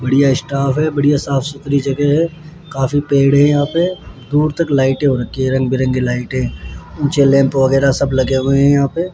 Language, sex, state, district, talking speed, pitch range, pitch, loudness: Hindi, male, Rajasthan, Jaipur, 205 wpm, 130-145 Hz, 140 Hz, -15 LUFS